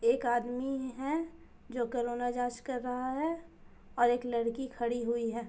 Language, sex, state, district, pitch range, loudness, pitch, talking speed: Hindi, female, Uttar Pradesh, Jalaun, 240-260 Hz, -34 LUFS, 245 Hz, 165 wpm